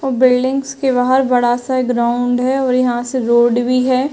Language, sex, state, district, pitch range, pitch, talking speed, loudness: Hindi, female, Uttar Pradesh, Hamirpur, 245-260 Hz, 255 Hz, 205 wpm, -15 LUFS